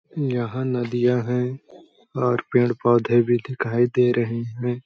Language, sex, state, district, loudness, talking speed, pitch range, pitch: Hindi, male, Chhattisgarh, Balrampur, -22 LUFS, 150 wpm, 120-125 Hz, 120 Hz